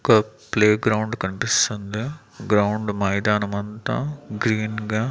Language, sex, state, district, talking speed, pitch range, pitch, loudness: Telugu, male, Andhra Pradesh, Manyam, 105 wpm, 105-110 Hz, 110 Hz, -22 LUFS